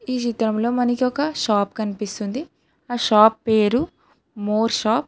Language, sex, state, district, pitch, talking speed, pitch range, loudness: Telugu, female, Telangana, Hyderabad, 225 Hz, 130 wpm, 215-250 Hz, -21 LUFS